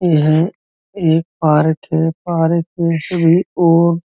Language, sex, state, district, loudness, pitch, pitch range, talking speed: Hindi, male, Uttar Pradesh, Muzaffarnagar, -15 LUFS, 165 Hz, 160-170 Hz, 135 wpm